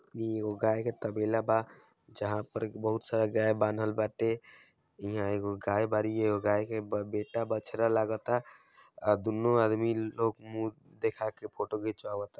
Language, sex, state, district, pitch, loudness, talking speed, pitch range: Bhojpuri, male, Bihar, Saran, 110 Hz, -32 LUFS, 160 wpm, 105-110 Hz